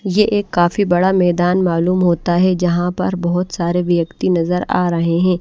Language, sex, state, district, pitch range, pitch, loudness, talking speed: Hindi, female, Odisha, Malkangiri, 175-185 Hz, 180 Hz, -16 LUFS, 190 wpm